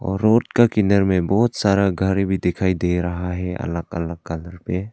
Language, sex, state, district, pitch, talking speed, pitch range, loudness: Hindi, male, Arunachal Pradesh, Longding, 95 Hz, 195 wpm, 90-100 Hz, -20 LUFS